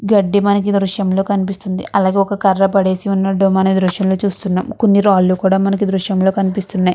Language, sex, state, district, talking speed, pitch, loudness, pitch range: Telugu, female, Andhra Pradesh, Krishna, 180 wpm, 195 Hz, -15 LUFS, 190-200 Hz